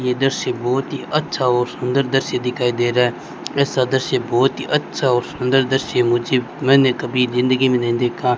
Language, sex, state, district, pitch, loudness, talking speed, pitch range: Hindi, male, Rajasthan, Bikaner, 125 Hz, -18 LUFS, 195 wpm, 125-135 Hz